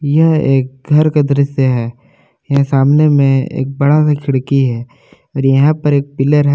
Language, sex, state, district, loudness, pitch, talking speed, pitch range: Hindi, male, Jharkhand, Palamu, -13 LUFS, 140 Hz, 185 wpm, 135-150 Hz